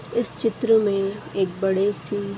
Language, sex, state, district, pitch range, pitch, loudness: Hindi, female, Uttar Pradesh, Deoria, 195-220 Hz, 200 Hz, -23 LUFS